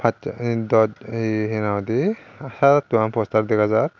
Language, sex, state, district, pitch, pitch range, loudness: Chakma, male, Tripura, Dhalai, 110 Hz, 110-120 Hz, -21 LUFS